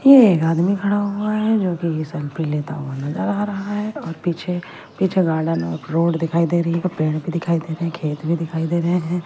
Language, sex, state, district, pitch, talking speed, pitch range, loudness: Hindi, female, Bihar, Patna, 170 Hz, 240 wpm, 160-190 Hz, -20 LUFS